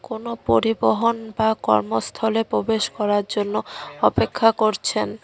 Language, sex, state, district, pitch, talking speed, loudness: Bengali, female, West Bengal, Cooch Behar, 215 Hz, 105 wpm, -21 LUFS